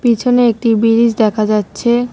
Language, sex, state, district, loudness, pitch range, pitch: Bengali, female, West Bengal, Cooch Behar, -13 LUFS, 215-240 Hz, 230 Hz